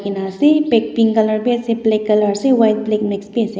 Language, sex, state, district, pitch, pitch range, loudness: Nagamese, female, Nagaland, Dimapur, 220 Hz, 210-230 Hz, -16 LUFS